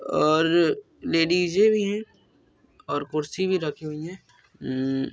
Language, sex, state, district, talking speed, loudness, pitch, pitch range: Hindi, male, Andhra Pradesh, Anantapur, 130 wpm, -24 LUFS, 170 Hz, 150-200 Hz